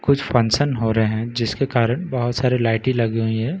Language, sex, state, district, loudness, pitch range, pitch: Hindi, male, Bihar, Katihar, -20 LUFS, 115-130 Hz, 120 Hz